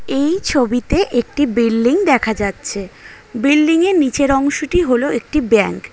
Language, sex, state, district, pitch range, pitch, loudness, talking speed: Bengali, female, West Bengal, North 24 Parganas, 240-300 Hz, 275 Hz, -15 LUFS, 140 wpm